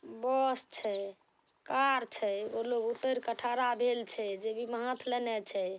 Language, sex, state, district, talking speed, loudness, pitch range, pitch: Maithili, female, Bihar, Saharsa, 165 wpm, -34 LUFS, 215-250 Hz, 235 Hz